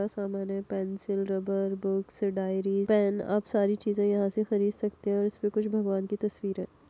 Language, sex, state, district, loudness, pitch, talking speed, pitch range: Hindi, female, Uttar Pradesh, Etah, -29 LUFS, 200 Hz, 185 wpm, 195-210 Hz